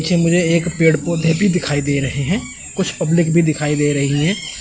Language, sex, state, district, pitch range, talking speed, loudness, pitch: Hindi, male, Chandigarh, Chandigarh, 145-175 Hz, 220 wpm, -17 LUFS, 165 Hz